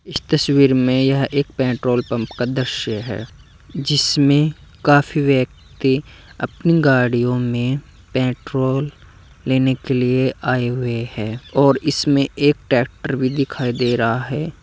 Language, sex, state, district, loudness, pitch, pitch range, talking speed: Hindi, male, Uttar Pradesh, Saharanpur, -18 LUFS, 130 Hz, 120-140 Hz, 130 wpm